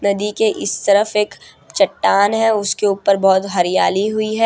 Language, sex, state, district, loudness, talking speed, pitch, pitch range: Hindi, female, Gujarat, Valsad, -16 LUFS, 175 wpm, 205 Hz, 200-215 Hz